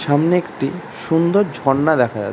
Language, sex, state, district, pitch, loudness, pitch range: Bengali, male, West Bengal, Kolkata, 160 Hz, -17 LUFS, 135-170 Hz